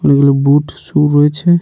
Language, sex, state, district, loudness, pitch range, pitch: Bengali, male, West Bengal, Paschim Medinipur, -12 LUFS, 140-150 Hz, 145 Hz